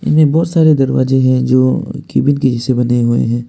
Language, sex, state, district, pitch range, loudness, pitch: Hindi, male, Arunachal Pradesh, Papum Pare, 125-145 Hz, -13 LUFS, 130 Hz